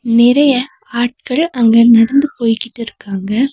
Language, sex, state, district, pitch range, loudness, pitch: Tamil, female, Tamil Nadu, Nilgiris, 230-265 Hz, -13 LUFS, 235 Hz